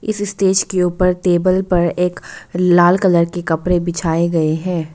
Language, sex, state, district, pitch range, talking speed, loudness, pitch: Hindi, female, Arunachal Pradesh, Longding, 170-185 Hz, 170 wpm, -16 LUFS, 180 Hz